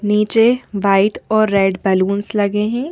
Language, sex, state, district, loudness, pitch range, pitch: Hindi, female, Madhya Pradesh, Bhopal, -16 LUFS, 195-215 Hz, 205 Hz